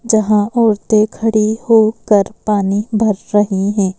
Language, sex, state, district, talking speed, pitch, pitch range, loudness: Hindi, female, Madhya Pradesh, Bhopal, 120 wpm, 215 Hz, 205-220 Hz, -14 LUFS